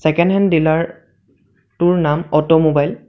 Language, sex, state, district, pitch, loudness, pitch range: Assamese, male, Assam, Sonitpur, 155 Hz, -15 LUFS, 145-170 Hz